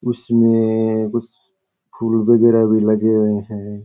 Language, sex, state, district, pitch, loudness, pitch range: Rajasthani, male, Rajasthan, Churu, 115 Hz, -16 LUFS, 110-120 Hz